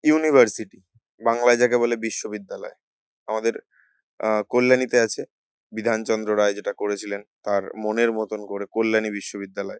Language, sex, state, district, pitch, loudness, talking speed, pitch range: Bengali, male, West Bengal, North 24 Parganas, 110 Hz, -23 LUFS, 120 wpm, 105-115 Hz